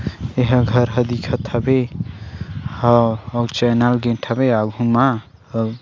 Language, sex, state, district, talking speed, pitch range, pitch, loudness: Chhattisgarhi, male, Chhattisgarh, Sarguja, 135 wpm, 115-125 Hz, 120 Hz, -18 LUFS